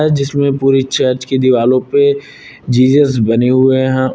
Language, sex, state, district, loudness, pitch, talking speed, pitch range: Hindi, male, Uttar Pradesh, Lucknow, -12 LUFS, 130 Hz, 145 wpm, 130-140 Hz